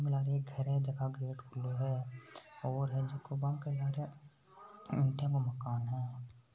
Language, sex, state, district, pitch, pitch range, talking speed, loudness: Hindi, male, Rajasthan, Nagaur, 135 Hz, 125-140 Hz, 120 wpm, -37 LUFS